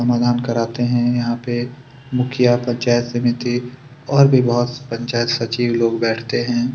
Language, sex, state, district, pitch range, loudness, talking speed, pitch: Hindi, male, Chhattisgarh, Kabirdham, 120-125 Hz, -18 LUFS, 150 wpm, 120 Hz